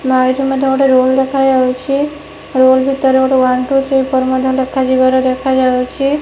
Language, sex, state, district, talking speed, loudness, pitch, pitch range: Odia, female, Odisha, Nuapada, 145 wpm, -13 LUFS, 260 Hz, 260-270 Hz